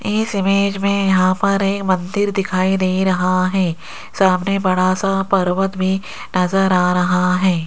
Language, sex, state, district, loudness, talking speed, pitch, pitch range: Hindi, female, Rajasthan, Jaipur, -17 LUFS, 155 wpm, 190 Hz, 185-195 Hz